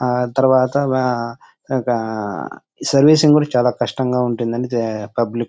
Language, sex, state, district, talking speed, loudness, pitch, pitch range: Telugu, male, Andhra Pradesh, Chittoor, 120 wpm, -17 LUFS, 125 Hz, 115-130 Hz